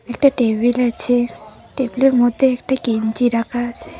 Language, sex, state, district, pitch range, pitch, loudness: Bengali, female, West Bengal, Cooch Behar, 235-265 Hz, 245 Hz, -18 LUFS